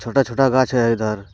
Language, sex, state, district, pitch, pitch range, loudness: Hindi, male, Jharkhand, Deoghar, 120 Hz, 110-130 Hz, -18 LUFS